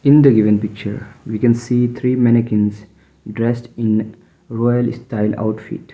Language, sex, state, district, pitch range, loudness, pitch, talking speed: English, male, Mizoram, Aizawl, 105-120 Hz, -17 LUFS, 115 Hz, 140 wpm